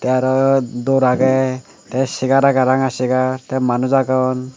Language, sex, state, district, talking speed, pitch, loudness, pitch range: Chakma, male, Tripura, Unakoti, 155 wpm, 130 Hz, -16 LUFS, 130-135 Hz